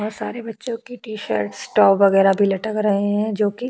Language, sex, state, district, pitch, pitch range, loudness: Hindi, female, Uttar Pradesh, Jyotiba Phule Nagar, 215 Hz, 200-230 Hz, -19 LUFS